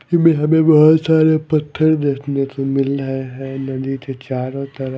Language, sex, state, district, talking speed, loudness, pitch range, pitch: Hindi, male, Odisha, Malkangiri, 180 wpm, -17 LUFS, 135-155 Hz, 140 Hz